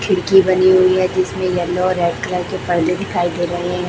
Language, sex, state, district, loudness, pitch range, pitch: Hindi, female, Chhattisgarh, Raipur, -16 LUFS, 175-185 Hz, 180 Hz